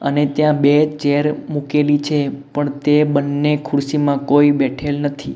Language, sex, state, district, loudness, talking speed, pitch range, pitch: Gujarati, male, Gujarat, Gandhinagar, -17 LUFS, 145 wpm, 140-150 Hz, 145 Hz